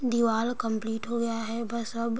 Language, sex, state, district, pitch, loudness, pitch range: Hindi, female, Bihar, Sitamarhi, 230 Hz, -29 LUFS, 225-235 Hz